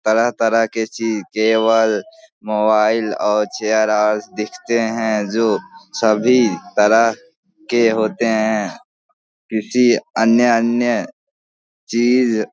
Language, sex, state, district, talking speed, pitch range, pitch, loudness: Hindi, male, Bihar, Samastipur, 95 wpm, 110-120 Hz, 115 Hz, -17 LUFS